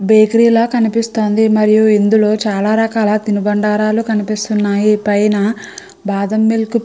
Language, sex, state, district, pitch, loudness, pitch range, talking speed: Telugu, female, Andhra Pradesh, Srikakulam, 215 Hz, -13 LUFS, 210-220 Hz, 120 wpm